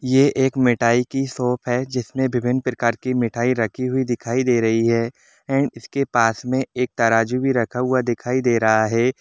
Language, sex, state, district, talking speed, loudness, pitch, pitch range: Hindi, male, Jharkhand, Sahebganj, 195 wpm, -20 LUFS, 125 Hz, 115-130 Hz